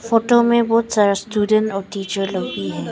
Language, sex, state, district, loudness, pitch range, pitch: Hindi, female, Arunachal Pradesh, Papum Pare, -18 LUFS, 195-230 Hz, 210 Hz